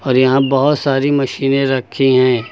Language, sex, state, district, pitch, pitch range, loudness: Hindi, male, Uttar Pradesh, Lucknow, 135 Hz, 130-140 Hz, -14 LUFS